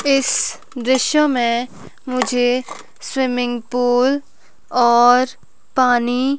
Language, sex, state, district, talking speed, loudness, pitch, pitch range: Hindi, female, Himachal Pradesh, Shimla, 75 wpm, -17 LUFS, 250 Hz, 245-265 Hz